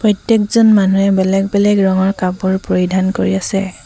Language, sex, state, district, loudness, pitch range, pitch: Assamese, female, Assam, Sonitpur, -14 LUFS, 190-205 Hz, 195 Hz